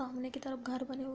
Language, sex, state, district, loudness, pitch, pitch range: Hindi, female, Uttar Pradesh, Budaun, -40 LUFS, 265 Hz, 255-265 Hz